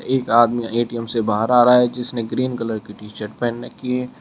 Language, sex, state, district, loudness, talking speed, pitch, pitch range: Hindi, male, Uttar Pradesh, Shamli, -19 LUFS, 240 wpm, 120 Hz, 115-125 Hz